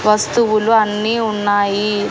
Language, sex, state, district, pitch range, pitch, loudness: Telugu, female, Andhra Pradesh, Annamaya, 205-220 Hz, 210 Hz, -15 LUFS